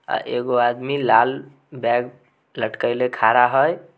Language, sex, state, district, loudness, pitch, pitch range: Maithili, male, Bihar, Samastipur, -19 LUFS, 125 Hz, 120-130 Hz